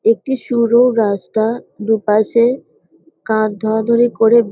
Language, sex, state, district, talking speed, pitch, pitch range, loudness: Bengali, female, West Bengal, Kolkata, 105 wpm, 225 Hz, 220-240 Hz, -15 LUFS